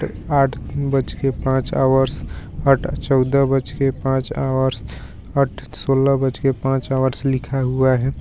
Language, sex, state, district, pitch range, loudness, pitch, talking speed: Hindi, female, Jharkhand, Garhwa, 130-135 Hz, -19 LUFS, 135 Hz, 115 wpm